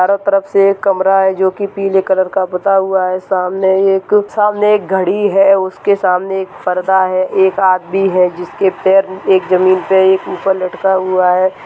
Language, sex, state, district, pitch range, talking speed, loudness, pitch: Hindi, male, Bihar, Purnia, 185-195 Hz, 190 wpm, -13 LUFS, 190 Hz